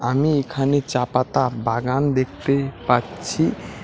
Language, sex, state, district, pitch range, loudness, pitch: Bengali, male, West Bengal, Alipurduar, 120-140 Hz, -21 LUFS, 130 Hz